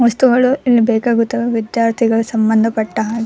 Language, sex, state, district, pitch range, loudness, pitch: Kannada, female, Karnataka, Dakshina Kannada, 225-240 Hz, -14 LUFS, 230 Hz